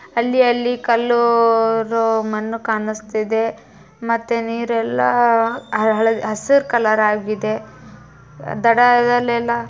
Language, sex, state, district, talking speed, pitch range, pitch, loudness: Kannada, female, Karnataka, Bijapur, 75 wpm, 220-235 Hz, 230 Hz, -17 LUFS